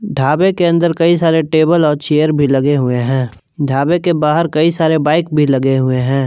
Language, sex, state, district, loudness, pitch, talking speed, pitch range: Hindi, male, Jharkhand, Palamu, -13 LUFS, 150 Hz, 210 wpm, 135-165 Hz